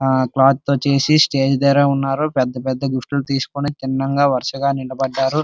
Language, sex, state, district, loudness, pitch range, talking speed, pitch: Telugu, male, Andhra Pradesh, Srikakulam, -17 LUFS, 135-140 Hz, 155 wpm, 135 Hz